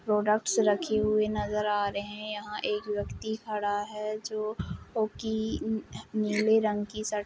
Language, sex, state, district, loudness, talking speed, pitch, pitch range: Hindi, female, Uttar Pradesh, Jalaun, -30 LUFS, 165 wpm, 215 Hz, 210-215 Hz